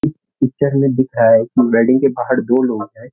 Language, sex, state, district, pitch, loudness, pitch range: Hindi, male, Uttarakhand, Uttarkashi, 130 Hz, -15 LUFS, 120-135 Hz